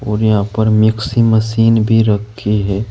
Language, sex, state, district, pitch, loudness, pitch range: Hindi, male, Uttar Pradesh, Saharanpur, 110 Hz, -13 LUFS, 105-115 Hz